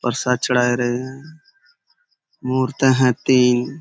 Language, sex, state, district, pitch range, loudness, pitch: Hindi, male, Uttar Pradesh, Budaun, 125-135 Hz, -18 LUFS, 130 Hz